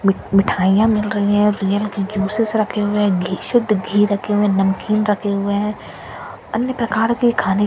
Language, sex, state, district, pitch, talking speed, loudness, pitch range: Hindi, female, Bihar, Katihar, 205 Hz, 205 wpm, -18 LUFS, 200-215 Hz